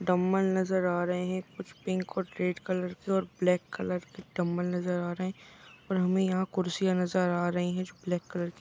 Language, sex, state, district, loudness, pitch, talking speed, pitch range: Hindi, female, Chhattisgarh, Raigarh, -31 LUFS, 180 Hz, 225 wpm, 180-185 Hz